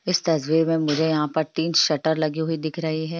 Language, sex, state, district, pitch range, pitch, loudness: Hindi, female, Bihar, Jamui, 155-165 Hz, 160 Hz, -22 LUFS